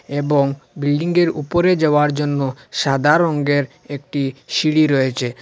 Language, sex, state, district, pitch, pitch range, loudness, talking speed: Bengali, male, Assam, Hailakandi, 145 Hz, 140-155 Hz, -18 LUFS, 135 wpm